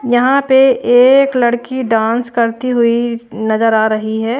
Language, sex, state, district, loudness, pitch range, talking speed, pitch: Hindi, female, Maharashtra, Washim, -13 LUFS, 225-255 Hz, 150 wpm, 240 Hz